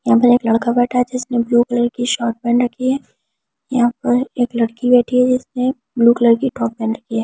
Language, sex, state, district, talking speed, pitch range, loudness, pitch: Hindi, female, Delhi, New Delhi, 230 wpm, 235-250 Hz, -16 LUFS, 245 Hz